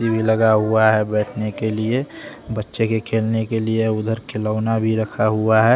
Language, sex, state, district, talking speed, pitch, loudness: Hindi, male, Bihar, West Champaran, 175 wpm, 110 Hz, -19 LUFS